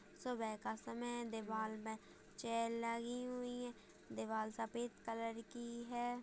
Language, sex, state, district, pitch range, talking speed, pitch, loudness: Hindi, female, Uttar Pradesh, Budaun, 220-240 Hz, 145 wpm, 230 Hz, -45 LUFS